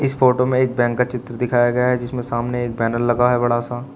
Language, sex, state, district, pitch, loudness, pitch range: Hindi, male, Uttar Pradesh, Shamli, 125 Hz, -19 LUFS, 120-125 Hz